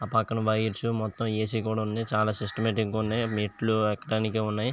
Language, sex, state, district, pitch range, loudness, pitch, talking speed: Telugu, male, Andhra Pradesh, Visakhapatnam, 110-115 Hz, -28 LUFS, 110 Hz, 175 wpm